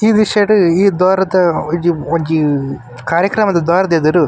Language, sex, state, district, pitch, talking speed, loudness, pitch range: Tulu, male, Karnataka, Dakshina Kannada, 175 Hz, 140 wpm, -13 LUFS, 160-195 Hz